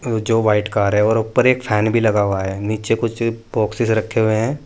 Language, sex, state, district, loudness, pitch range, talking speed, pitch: Hindi, male, Uttar Pradesh, Saharanpur, -18 LUFS, 105-115 Hz, 230 wpm, 110 Hz